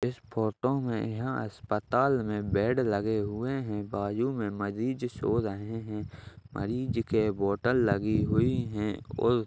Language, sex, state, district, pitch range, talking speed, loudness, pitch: Hindi, male, Uttar Pradesh, Ghazipur, 105-125 Hz, 150 wpm, -30 LUFS, 110 Hz